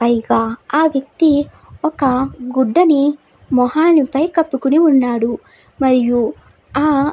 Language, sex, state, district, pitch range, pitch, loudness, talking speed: Telugu, female, Andhra Pradesh, Chittoor, 250-305 Hz, 275 Hz, -15 LUFS, 90 wpm